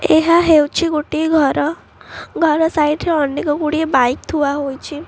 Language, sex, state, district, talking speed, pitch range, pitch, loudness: Odia, female, Odisha, Khordha, 130 wpm, 295-320 Hz, 305 Hz, -16 LUFS